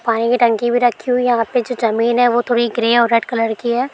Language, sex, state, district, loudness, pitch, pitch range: Hindi, female, Bihar, Araria, -16 LUFS, 240 Hz, 230-245 Hz